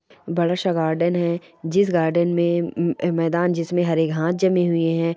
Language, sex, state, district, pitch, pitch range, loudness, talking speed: Hindi, female, Chhattisgarh, Balrampur, 170 Hz, 165-175 Hz, -21 LUFS, 160 wpm